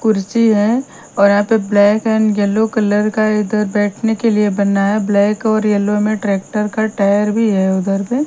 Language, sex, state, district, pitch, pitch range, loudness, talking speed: Hindi, female, Punjab, Kapurthala, 210 Hz, 205-220 Hz, -15 LUFS, 195 wpm